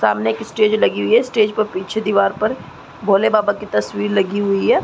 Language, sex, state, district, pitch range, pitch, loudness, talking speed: Hindi, female, Chhattisgarh, Balrampur, 165-215 Hz, 200 Hz, -17 LUFS, 225 wpm